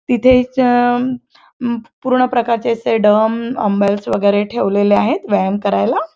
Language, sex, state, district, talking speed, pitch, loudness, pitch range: Marathi, female, Maharashtra, Chandrapur, 95 wpm, 235 Hz, -15 LUFS, 205-245 Hz